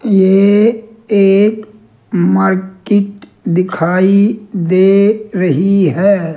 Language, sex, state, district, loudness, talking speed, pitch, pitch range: Hindi, male, Rajasthan, Jaipur, -12 LUFS, 65 wpm, 195 Hz, 185-210 Hz